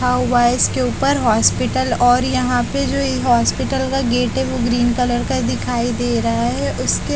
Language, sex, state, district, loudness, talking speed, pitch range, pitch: Hindi, female, Haryana, Charkhi Dadri, -17 LUFS, 220 wpm, 235-250 Hz, 245 Hz